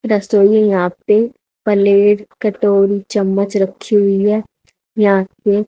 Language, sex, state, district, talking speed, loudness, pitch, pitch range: Hindi, female, Haryana, Charkhi Dadri, 125 wpm, -14 LUFS, 205 Hz, 200-210 Hz